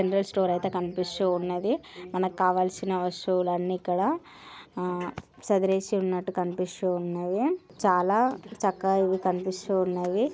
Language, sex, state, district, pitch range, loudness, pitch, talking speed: Telugu, female, Andhra Pradesh, Guntur, 180-195 Hz, -27 LUFS, 185 Hz, 80 wpm